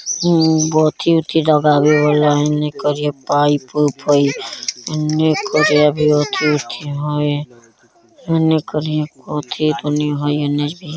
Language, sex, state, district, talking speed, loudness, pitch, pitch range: Bajjika, male, Bihar, Vaishali, 140 wpm, -16 LUFS, 150 Hz, 145-155 Hz